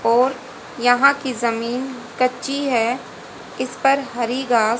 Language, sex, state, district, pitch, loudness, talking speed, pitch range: Hindi, female, Haryana, Jhajjar, 245 Hz, -20 LUFS, 135 wpm, 235-265 Hz